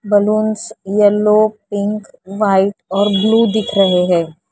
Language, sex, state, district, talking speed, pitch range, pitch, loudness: Hindi, female, Maharashtra, Mumbai Suburban, 120 wpm, 195-215 Hz, 205 Hz, -15 LUFS